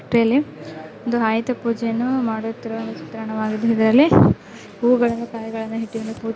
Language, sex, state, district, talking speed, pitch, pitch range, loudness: Kannada, female, Karnataka, Belgaum, 105 wpm, 225 Hz, 225-235 Hz, -20 LUFS